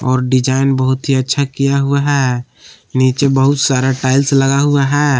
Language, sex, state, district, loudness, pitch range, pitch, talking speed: Hindi, male, Jharkhand, Palamu, -14 LUFS, 130-140 Hz, 135 Hz, 175 wpm